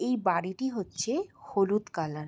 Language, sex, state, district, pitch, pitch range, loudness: Bengali, female, West Bengal, Jalpaiguri, 200 Hz, 180-250 Hz, -30 LUFS